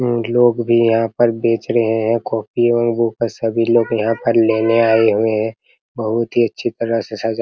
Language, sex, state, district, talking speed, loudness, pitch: Hindi, male, Bihar, Araria, 210 wpm, -16 LUFS, 115 Hz